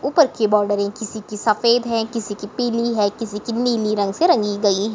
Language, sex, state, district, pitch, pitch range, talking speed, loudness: Hindi, female, Chhattisgarh, Jashpur, 220 Hz, 205-235 Hz, 220 wpm, -20 LUFS